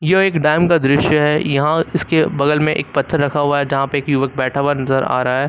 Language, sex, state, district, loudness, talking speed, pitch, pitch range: Hindi, male, Uttar Pradesh, Lucknow, -16 LUFS, 260 wpm, 145 Hz, 140-155 Hz